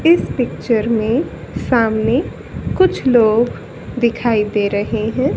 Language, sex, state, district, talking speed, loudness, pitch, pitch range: Hindi, female, Haryana, Jhajjar, 110 wpm, -16 LUFS, 230 Hz, 220-255 Hz